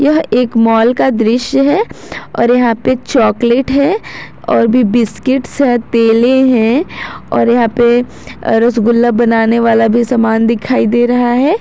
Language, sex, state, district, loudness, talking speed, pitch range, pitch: Hindi, female, Jharkhand, Garhwa, -11 LUFS, 150 wpm, 230-255 Hz, 240 Hz